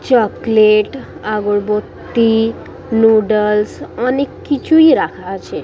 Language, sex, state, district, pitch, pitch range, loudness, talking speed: Bengali, female, West Bengal, Purulia, 225 Hz, 210-245 Hz, -14 LUFS, 75 wpm